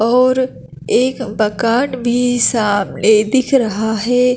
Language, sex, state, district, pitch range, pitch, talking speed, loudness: Hindi, female, Chhattisgarh, Kabirdham, 220-255 Hz, 240 Hz, 110 wpm, -15 LUFS